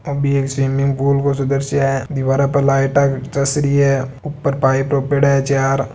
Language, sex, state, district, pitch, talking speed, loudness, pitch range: Hindi, male, Rajasthan, Nagaur, 140 Hz, 120 wpm, -16 LUFS, 135-140 Hz